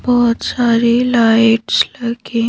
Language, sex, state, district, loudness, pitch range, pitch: Hindi, female, Madhya Pradesh, Bhopal, -14 LUFS, 230-240 Hz, 235 Hz